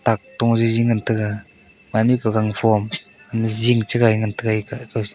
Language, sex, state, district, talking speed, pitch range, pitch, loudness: Wancho, male, Arunachal Pradesh, Longding, 150 wpm, 105-115 Hz, 110 Hz, -19 LUFS